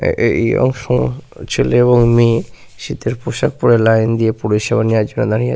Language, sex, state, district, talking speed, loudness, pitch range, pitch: Bengali, male, West Bengal, Paschim Medinipur, 195 wpm, -15 LUFS, 110-120 Hz, 115 Hz